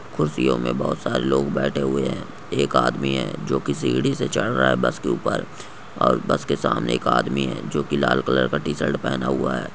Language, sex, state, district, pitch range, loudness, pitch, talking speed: Hindi, male, Goa, North and South Goa, 65-70 Hz, -22 LUFS, 65 Hz, 230 wpm